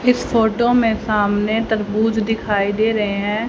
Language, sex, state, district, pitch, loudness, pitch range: Hindi, female, Haryana, Rohtak, 220 Hz, -18 LUFS, 210-225 Hz